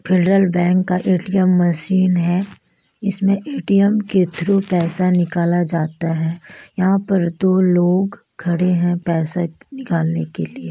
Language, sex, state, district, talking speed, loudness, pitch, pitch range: Hindi, female, Chhattisgarh, Balrampur, 135 wpm, -18 LUFS, 180 Hz, 170-195 Hz